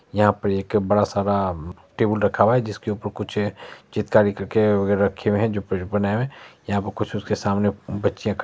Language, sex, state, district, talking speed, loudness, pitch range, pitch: Maithili, male, Bihar, Supaul, 185 wpm, -22 LUFS, 100-105 Hz, 105 Hz